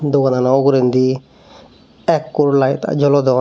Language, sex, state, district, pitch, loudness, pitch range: Chakma, male, Tripura, Dhalai, 135 Hz, -15 LUFS, 130-145 Hz